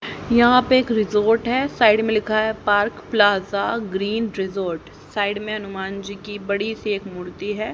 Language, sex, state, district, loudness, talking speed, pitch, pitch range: Hindi, female, Haryana, Charkhi Dadri, -20 LUFS, 180 wpm, 210 Hz, 200-225 Hz